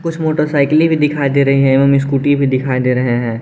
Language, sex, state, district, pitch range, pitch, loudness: Hindi, male, Jharkhand, Garhwa, 130-150 Hz, 140 Hz, -13 LUFS